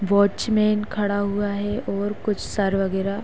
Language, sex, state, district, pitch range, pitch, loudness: Hindi, female, Uttar Pradesh, Hamirpur, 200-210 Hz, 205 Hz, -23 LUFS